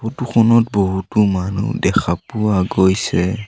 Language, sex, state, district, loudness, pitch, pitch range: Assamese, male, Assam, Sonitpur, -17 LUFS, 100 Hz, 95-115 Hz